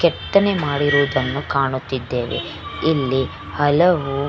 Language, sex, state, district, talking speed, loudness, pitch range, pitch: Kannada, female, Karnataka, Belgaum, 85 wpm, -19 LUFS, 130-150 Hz, 140 Hz